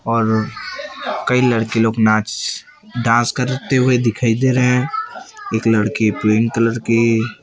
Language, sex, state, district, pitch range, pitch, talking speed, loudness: Hindi, male, Chhattisgarh, Raipur, 110-125 Hz, 115 Hz, 145 wpm, -17 LUFS